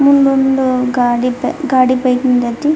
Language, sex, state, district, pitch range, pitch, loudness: Kannada, female, Karnataka, Dharwad, 250-270 Hz, 255 Hz, -13 LUFS